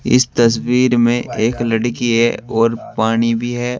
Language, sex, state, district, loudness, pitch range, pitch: Hindi, male, Uttar Pradesh, Saharanpur, -16 LUFS, 115-120 Hz, 120 Hz